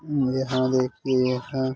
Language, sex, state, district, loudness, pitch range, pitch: Hindi, male, Uttar Pradesh, Hamirpur, -24 LUFS, 130-135 Hz, 130 Hz